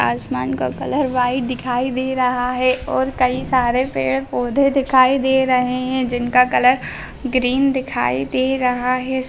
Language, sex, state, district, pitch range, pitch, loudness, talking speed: Hindi, female, Bihar, Bhagalpur, 245-260 Hz, 255 Hz, -18 LUFS, 150 wpm